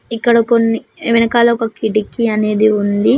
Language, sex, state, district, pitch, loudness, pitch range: Telugu, female, Telangana, Mahabubabad, 230 Hz, -14 LUFS, 215-235 Hz